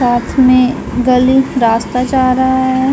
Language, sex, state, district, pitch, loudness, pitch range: Hindi, female, Uttar Pradesh, Jalaun, 255 Hz, -12 LUFS, 250-260 Hz